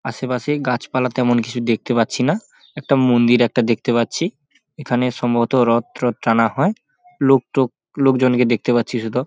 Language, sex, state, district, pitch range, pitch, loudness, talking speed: Bengali, male, West Bengal, Paschim Medinipur, 120-135 Hz, 125 Hz, -18 LUFS, 150 wpm